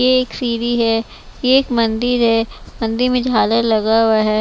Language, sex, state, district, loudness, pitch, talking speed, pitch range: Hindi, female, Bihar, West Champaran, -16 LUFS, 230 Hz, 190 wpm, 225-250 Hz